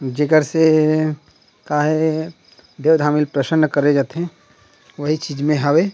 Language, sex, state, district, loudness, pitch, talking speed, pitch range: Chhattisgarhi, male, Chhattisgarh, Rajnandgaon, -17 LUFS, 150 Hz, 150 wpm, 145-155 Hz